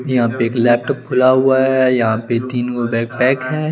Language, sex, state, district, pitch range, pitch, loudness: Hindi, male, Chandigarh, Chandigarh, 120-130 Hz, 125 Hz, -16 LUFS